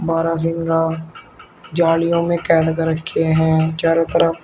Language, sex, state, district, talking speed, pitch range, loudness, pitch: Hindi, male, Uttar Pradesh, Shamli, 120 wpm, 160-165 Hz, -17 LUFS, 165 Hz